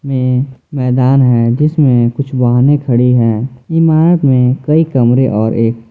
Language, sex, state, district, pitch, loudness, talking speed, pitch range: Hindi, male, Jharkhand, Ranchi, 130 Hz, -11 LUFS, 140 wpm, 120-140 Hz